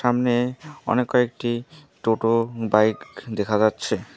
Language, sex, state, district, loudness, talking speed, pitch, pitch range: Bengali, female, West Bengal, Alipurduar, -22 LUFS, 100 wpm, 120 Hz, 110-125 Hz